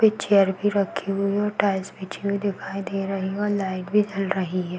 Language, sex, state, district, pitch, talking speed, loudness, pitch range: Hindi, female, Uttar Pradesh, Varanasi, 195 Hz, 240 wpm, -24 LUFS, 190-205 Hz